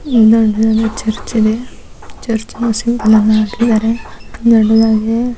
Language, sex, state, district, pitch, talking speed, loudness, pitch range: Kannada, female, Karnataka, Dakshina Kannada, 225 Hz, 65 wpm, -13 LUFS, 220-235 Hz